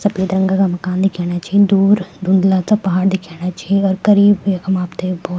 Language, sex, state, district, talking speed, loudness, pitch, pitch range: Garhwali, female, Uttarakhand, Tehri Garhwal, 200 wpm, -15 LUFS, 190 Hz, 180-195 Hz